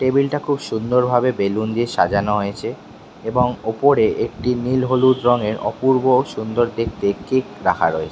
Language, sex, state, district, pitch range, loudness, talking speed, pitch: Bengali, male, West Bengal, Dakshin Dinajpur, 110-130 Hz, -19 LUFS, 160 wpm, 120 Hz